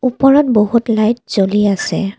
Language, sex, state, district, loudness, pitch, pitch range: Assamese, female, Assam, Kamrup Metropolitan, -14 LUFS, 220 Hz, 205-245 Hz